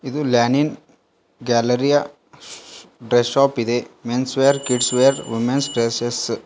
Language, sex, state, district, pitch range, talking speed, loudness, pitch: Kannada, female, Karnataka, Bidar, 120-140 Hz, 120 wpm, -19 LUFS, 125 Hz